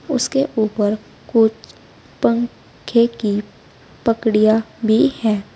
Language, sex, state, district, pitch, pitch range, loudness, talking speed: Hindi, female, Uttar Pradesh, Saharanpur, 220 Hz, 150-230 Hz, -18 LUFS, 85 wpm